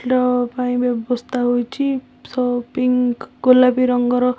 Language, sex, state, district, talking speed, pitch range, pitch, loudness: Odia, female, Odisha, Khordha, 125 wpm, 245-255 Hz, 250 Hz, -18 LUFS